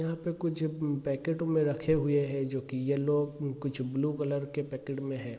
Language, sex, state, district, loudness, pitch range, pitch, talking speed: Hindi, male, Bihar, Sitamarhi, -32 LUFS, 135-155 Hz, 145 Hz, 210 wpm